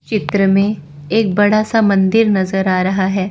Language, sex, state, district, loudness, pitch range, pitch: Hindi, female, Chandigarh, Chandigarh, -14 LUFS, 190-215 Hz, 195 Hz